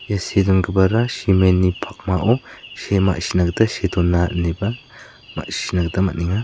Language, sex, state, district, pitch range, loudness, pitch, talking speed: Garo, male, Meghalaya, South Garo Hills, 90-105 Hz, -19 LUFS, 95 Hz, 130 wpm